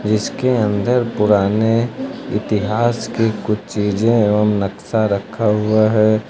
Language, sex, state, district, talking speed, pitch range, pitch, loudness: Hindi, male, Uttar Pradesh, Lucknow, 115 wpm, 105-115 Hz, 110 Hz, -17 LUFS